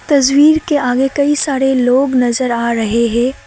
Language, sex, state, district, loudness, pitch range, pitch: Hindi, female, Assam, Kamrup Metropolitan, -13 LUFS, 245-285 Hz, 265 Hz